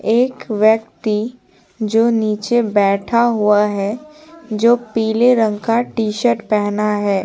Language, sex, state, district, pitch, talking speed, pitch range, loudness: Hindi, female, Bihar, Patna, 220 Hz, 110 wpm, 210-235 Hz, -16 LUFS